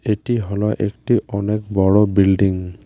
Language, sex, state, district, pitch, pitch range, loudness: Bengali, male, West Bengal, Alipurduar, 105 Hz, 100-105 Hz, -18 LUFS